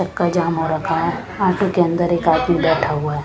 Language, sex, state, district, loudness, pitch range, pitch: Hindi, female, Chhattisgarh, Raipur, -18 LUFS, 160-175 Hz, 170 Hz